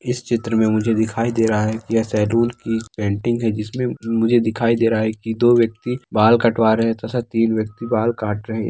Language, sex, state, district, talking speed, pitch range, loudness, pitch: Hindi, male, Bihar, Darbhanga, 235 wpm, 110-115 Hz, -19 LUFS, 115 Hz